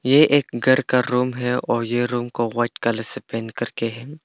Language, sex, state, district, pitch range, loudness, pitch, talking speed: Hindi, male, Arunachal Pradesh, Papum Pare, 115-130 Hz, -21 LUFS, 120 Hz, 225 wpm